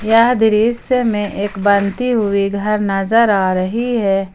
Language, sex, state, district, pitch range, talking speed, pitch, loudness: Hindi, female, Jharkhand, Ranchi, 200-230 Hz, 165 wpm, 210 Hz, -15 LUFS